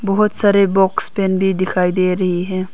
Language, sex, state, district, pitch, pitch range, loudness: Hindi, female, Arunachal Pradesh, Papum Pare, 190 Hz, 185-195 Hz, -16 LUFS